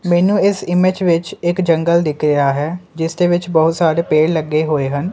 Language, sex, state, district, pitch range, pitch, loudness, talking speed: Punjabi, male, Punjab, Kapurthala, 155-175 Hz, 165 Hz, -15 LUFS, 210 wpm